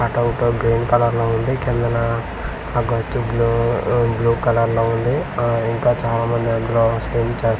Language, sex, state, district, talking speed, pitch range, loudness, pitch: Telugu, male, Andhra Pradesh, Manyam, 160 wpm, 115-120 Hz, -19 LUFS, 115 Hz